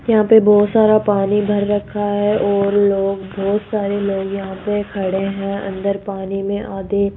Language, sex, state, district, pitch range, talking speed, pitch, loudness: Hindi, female, Rajasthan, Jaipur, 195-205 Hz, 185 wpm, 200 Hz, -17 LUFS